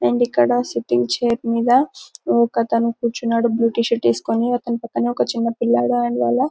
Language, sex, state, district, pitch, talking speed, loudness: Telugu, female, Telangana, Karimnagar, 230 Hz, 175 wpm, -19 LUFS